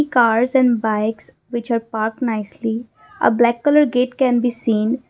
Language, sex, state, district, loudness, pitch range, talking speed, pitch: English, female, Assam, Kamrup Metropolitan, -18 LUFS, 225-250 Hz, 165 wpm, 235 Hz